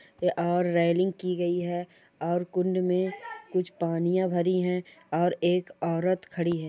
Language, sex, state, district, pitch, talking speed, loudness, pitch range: Hindi, female, Chhattisgarh, Jashpur, 180 Hz, 155 wpm, -28 LUFS, 175-185 Hz